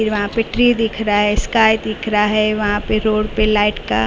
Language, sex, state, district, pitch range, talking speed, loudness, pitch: Hindi, female, Maharashtra, Mumbai Suburban, 210-220 Hz, 250 wpm, -16 LUFS, 215 Hz